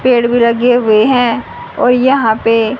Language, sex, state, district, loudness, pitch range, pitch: Hindi, female, Haryana, Charkhi Dadri, -11 LUFS, 225-250 Hz, 240 Hz